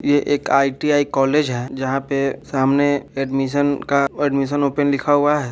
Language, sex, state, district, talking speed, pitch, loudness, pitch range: Hindi, male, Bihar, Vaishali, 165 wpm, 140 Hz, -19 LUFS, 135-145 Hz